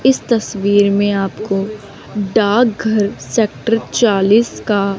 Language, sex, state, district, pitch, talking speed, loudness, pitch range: Hindi, female, Chandigarh, Chandigarh, 205 Hz, 120 wpm, -15 LUFS, 200-225 Hz